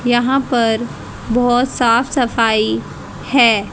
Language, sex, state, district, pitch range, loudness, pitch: Hindi, female, Haryana, Charkhi Dadri, 220-245 Hz, -15 LUFS, 240 Hz